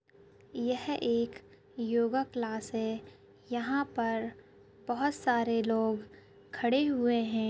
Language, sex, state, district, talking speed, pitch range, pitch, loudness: Hindi, female, Chhattisgarh, Balrampur, 105 wpm, 225-250 Hz, 235 Hz, -32 LUFS